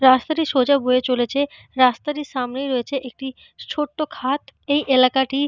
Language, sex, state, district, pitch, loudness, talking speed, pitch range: Bengali, female, Jharkhand, Jamtara, 270 Hz, -20 LUFS, 130 wpm, 255-285 Hz